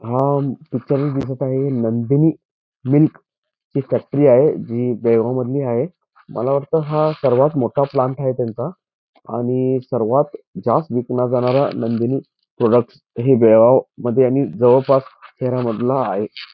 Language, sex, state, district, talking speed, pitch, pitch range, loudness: Marathi, male, Karnataka, Belgaum, 125 wpm, 130 Hz, 120-140 Hz, -18 LUFS